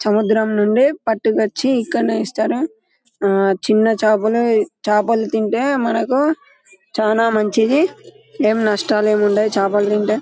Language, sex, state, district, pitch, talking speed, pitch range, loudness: Telugu, male, Telangana, Karimnagar, 220 Hz, 100 wpm, 215-260 Hz, -17 LUFS